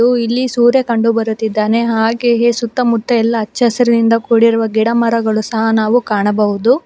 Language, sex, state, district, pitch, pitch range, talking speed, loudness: Kannada, female, Karnataka, Bangalore, 230 Hz, 220-240 Hz, 130 wpm, -13 LUFS